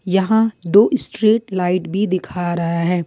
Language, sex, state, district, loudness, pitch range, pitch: Hindi, female, Jharkhand, Ranchi, -17 LUFS, 175-215 Hz, 185 Hz